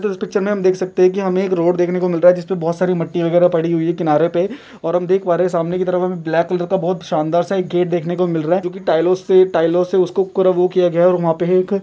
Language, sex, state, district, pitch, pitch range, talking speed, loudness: Bhojpuri, male, Bihar, Saran, 180 Hz, 170-185 Hz, 330 wpm, -16 LUFS